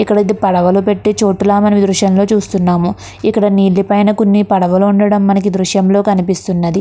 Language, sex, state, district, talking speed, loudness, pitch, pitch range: Telugu, female, Andhra Pradesh, Krishna, 150 wpm, -12 LUFS, 200 Hz, 190-210 Hz